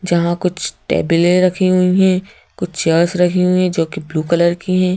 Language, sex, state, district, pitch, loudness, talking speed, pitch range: Hindi, female, Madhya Pradesh, Bhopal, 180 Hz, -15 LUFS, 215 wpm, 170-185 Hz